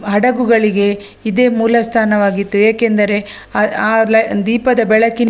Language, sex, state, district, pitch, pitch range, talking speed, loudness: Kannada, female, Karnataka, Dakshina Kannada, 220 Hz, 205-230 Hz, 100 wpm, -13 LUFS